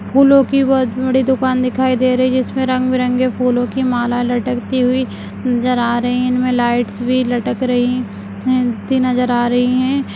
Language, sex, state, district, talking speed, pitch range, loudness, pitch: Hindi, female, Bihar, Madhepura, 190 wpm, 245-255 Hz, -16 LUFS, 250 Hz